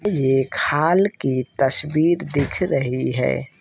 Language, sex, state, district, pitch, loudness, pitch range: Hindi, male, Uttar Pradesh, Jalaun, 140 Hz, -20 LUFS, 135-170 Hz